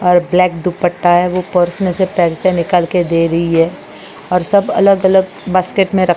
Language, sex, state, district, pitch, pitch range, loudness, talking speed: Hindi, female, Maharashtra, Mumbai Suburban, 180 Hz, 175-185 Hz, -13 LUFS, 195 wpm